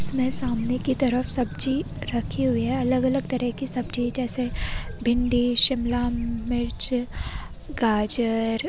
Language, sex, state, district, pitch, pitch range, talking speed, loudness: Hindi, female, Chhattisgarh, Korba, 245 Hz, 225-250 Hz, 140 wpm, -24 LUFS